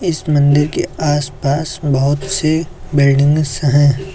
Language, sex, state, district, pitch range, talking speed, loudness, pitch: Hindi, male, Uttar Pradesh, Lucknow, 140-155 Hz, 115 wpm, -15 LUFS, 145 Hz